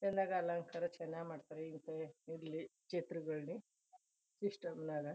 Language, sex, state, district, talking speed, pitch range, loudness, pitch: Kannada, female, Karnataka, Chamarajanagar, 95 wpm, 160-185 Hz, -44 LUFS, 165 Hz